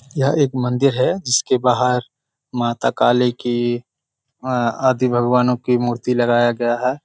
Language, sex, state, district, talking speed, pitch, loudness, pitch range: Hindi, male, Bihar, Kishanganj, 135 wpm, 125 Hz, -18 LUFS, 120-130 Hz